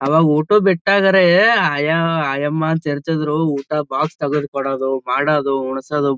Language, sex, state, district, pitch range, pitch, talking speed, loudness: Kannada, male, Karnataka, Gulbarga, 140-165 Hz, 150 Hz, 125 wpm, -17 LUFS